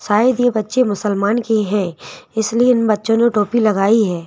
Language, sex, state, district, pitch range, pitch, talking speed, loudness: Hindi, female, Madhya Pradesh, Bhopal, 205-235 Hz, 220 Hz, 185 wpm, -16 LUFS